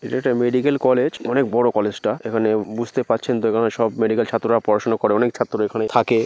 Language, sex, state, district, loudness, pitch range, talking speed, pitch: Bengali, male, West Bengal, North 24 Parganas, -20 LUFS, 110-120 Hz, 210 wpm, 115 Hz